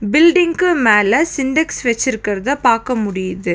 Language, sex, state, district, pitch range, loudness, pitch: Tamil, female, Tamil Nadu, Nilgiris, 210-315 Hz, -15 LUFS, 250 Hz